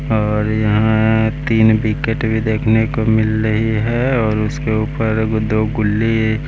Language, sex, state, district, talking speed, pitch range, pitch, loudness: Hindi, male, Bihar, West Champaran, 150 wpm, 110-115 Hz, 110 Hz, -16 LUFS